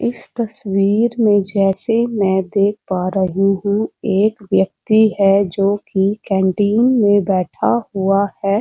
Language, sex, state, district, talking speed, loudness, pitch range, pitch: Hindi, female, Uttar Pradesh, Muzaffarnagar, 125 wpm, -16 LUFS, 195-215 Hz, 200 Hz